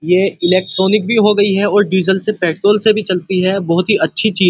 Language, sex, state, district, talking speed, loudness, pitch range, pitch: Hindi, male, Uttar Pradesh, Muzaffarnagar, 255 wpm, -14 LUFS, 185-210 Hz, 195 Hz